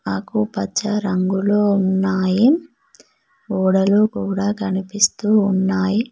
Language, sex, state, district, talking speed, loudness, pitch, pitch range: Telugu, female, Telangana, Mahabubabad, 70 wpm, -18 LUFS, 195 Hz, 190-210 Hz